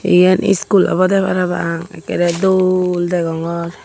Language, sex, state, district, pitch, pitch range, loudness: Chakma, female, Tripura, Unakoti, 180 Hz, 170-185 Hz, -15 LUFS